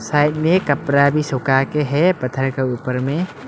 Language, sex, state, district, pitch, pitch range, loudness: Hindi, male, Arunachal Pradesh, Lower Dibang Valley, 140 Hz, 135-150 Hz, -18 LUFS